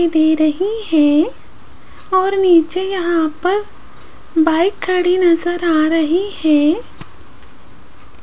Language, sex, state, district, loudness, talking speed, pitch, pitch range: Hindi, female, Rajasthan, Jaipur, -15 LUFS, 95 wpm, 345 Hz, 315-375 Hz